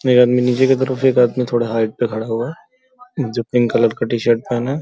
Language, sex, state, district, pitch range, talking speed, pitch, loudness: Hindi, male, Uttar Pradesh, Gorakhpur, 120-130 Hz, 235 wpm, 125 Hz, -17 LUFS